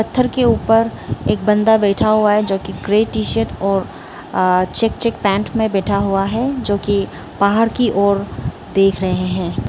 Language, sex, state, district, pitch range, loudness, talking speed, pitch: Hindi, female, Arunachal Pradesh, Lower Dibang Valley, 195-220 Hz, -16 LUFS, 180 wpm, 200 Hz